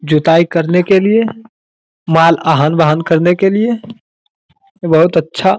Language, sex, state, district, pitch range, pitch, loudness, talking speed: Hindi, male, Bihar, Jamui, 165-215 Hz, 175 Hz, -12 LUFS, 130 wpm